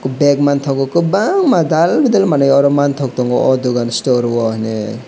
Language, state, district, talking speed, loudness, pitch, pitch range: Kokborok, Tripura, West Tripura, 165 wpm, -14 LUFS, 135 Hz, 125-145 Hz